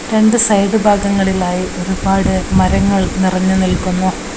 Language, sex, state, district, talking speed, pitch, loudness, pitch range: Malayalam, female, Kerala, Kozhikode, 80 wpm, 190 Hz, -14 LUFS, 185-200 Hz